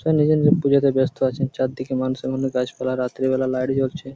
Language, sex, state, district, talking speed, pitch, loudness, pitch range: Bengali, male, West Bengal, Paschim Medinipur, 185 wpm, 130 Hz, -21 LUFS, 130-140 Hz